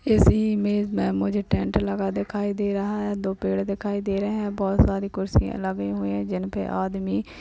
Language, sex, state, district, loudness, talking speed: Hindi, female, Uttar Pradesh, Hamirpur, -25 LUFS, 210 wpm